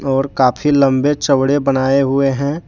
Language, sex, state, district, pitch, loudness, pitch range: Hindi, male, Jharkhand, Deoghar, 135 Hz, -14 LUFS, 135-140 Hz